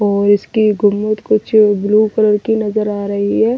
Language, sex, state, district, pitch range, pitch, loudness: Hindi, female, Delhi, New Delhi, 205-215 Hz, 210 Hz, -14 LUFS